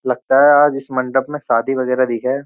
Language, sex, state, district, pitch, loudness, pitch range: Hindi, male, Uttar Pradesh, Jyotiba Phule Nagar, 130 Hz, -15 LUFS, 125-140 Hz